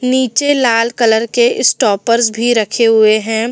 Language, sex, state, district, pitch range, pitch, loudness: Hindi, female, Delhi, New Delhi, 220-245 Hz, 230 Hz, -12 LUFS